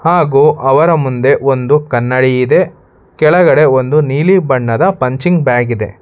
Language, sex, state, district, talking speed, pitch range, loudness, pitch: Kannada, male, Karnataka, Bangalore, 130 wpm, 125-160 Hz, -11 LUFS, 135 Hz